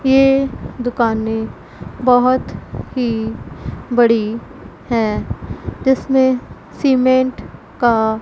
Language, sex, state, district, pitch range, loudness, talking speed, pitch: Hindi, female, Punjab, Pathankot, 225-260 Hz, -17 LUFS, 65 wpm, 245 Hz